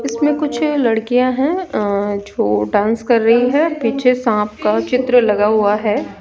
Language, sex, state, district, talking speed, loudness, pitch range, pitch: Hindi, female, Rajasthan, Jaipur, 165 wpm, -16 LUFS, 210-255 Hz, 230 Hz